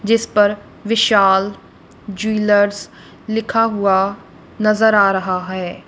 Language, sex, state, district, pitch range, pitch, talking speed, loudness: Hindi, female, Punjab, Kapurthala, 195-220 Hz, 205 Hz, 100 wpm, -16 LUFS